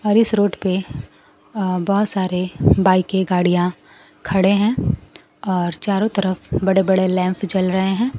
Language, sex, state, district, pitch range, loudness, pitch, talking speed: Hindi, female, Bihar, Kaimur, 180-200 Hz, -18 LUFS, 190 Hz, 145 wpm